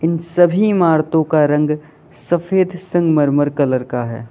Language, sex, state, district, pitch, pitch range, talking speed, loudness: Hindi, male, Uttar Pradesh, Lalitpur, 155 Hz, 145-175 Hz, 140 wpm, -16 LUFS